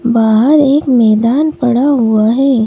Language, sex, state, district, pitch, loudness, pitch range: Hindi, female, Madhya Pradesh, Bhopal, 245 Hz, -10 LUFS, 225-275 Hz